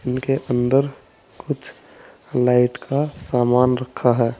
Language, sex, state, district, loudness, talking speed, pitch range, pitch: Hindi, male, Uttar Pradesh, Saharanpur, -20 LUFS, 110 wpm, 125-135 Hz, 125 Hz